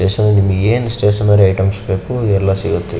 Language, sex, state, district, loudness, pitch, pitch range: Kannada, male, Karnataka, Shimoga, -14 LUFS, 100 Hz, 95-105 Hz